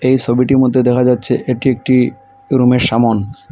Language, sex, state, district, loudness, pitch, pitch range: Bengali, male, Assam, Hailakandi, -13 LUFS, 125 Hz, 125-130 Hz